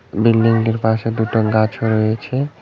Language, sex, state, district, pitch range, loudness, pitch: Bengali, male, West Bengal, Cooch Behar, 110-115 Hz, -17 LUFS, 110 Hz